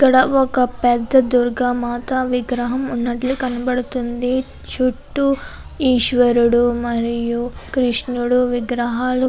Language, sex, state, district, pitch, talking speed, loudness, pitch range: Telugu, female, Andhra Pradesh, Chittoor, 250 Hz, 85 wpm, -18 LUFS, 240-255 Hz